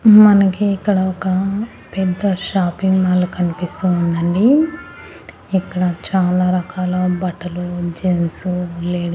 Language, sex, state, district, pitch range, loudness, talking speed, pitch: Telugu, female, Andhra Pradesh, Annamaya, 175-195 Hz, -17 LUFS, 105 wpm, 185 Hz